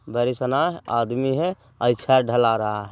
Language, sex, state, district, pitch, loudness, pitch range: Hindi, male, Bihar, Jahanabad, 120 Hz, -22 LUFS, 115-130 Hz